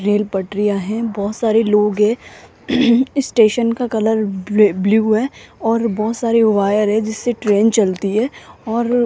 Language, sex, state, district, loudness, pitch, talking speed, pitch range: Hindi, female, Rajasthan, Jaipur, -16 LUFS, 220 Hz, 160 wpm, 210-230 Hz